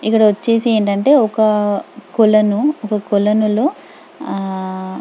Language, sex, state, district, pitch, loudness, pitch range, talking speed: Telugu, female, Telangana, Karimnagar, 215 Hz, -15 LUFS, 205-225 Hz, 120 wpm